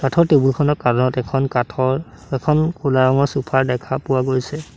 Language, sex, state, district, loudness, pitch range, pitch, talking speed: Assamese, male, Assam, Sonitpur, -18 LUFS, 130-145 Hz, 135 Hz, 165 wpm